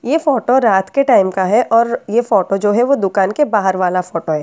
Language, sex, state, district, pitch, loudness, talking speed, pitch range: Hindi, female, Bihar, Katihar, 215 Hz, -14 LUFS, 255 wpm, 190-245 Hz